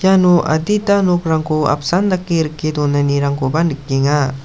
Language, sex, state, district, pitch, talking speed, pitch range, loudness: Garo, male, Meghalaya, South Garo Hills, 155 Hz, 110 wpm, 145-180 Hz, -16 LUFS